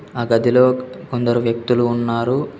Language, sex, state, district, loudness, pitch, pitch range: Telugu, male, Telangana, Komaram Bheem, -18 LUFS, 120 Hz, 120-125 Hz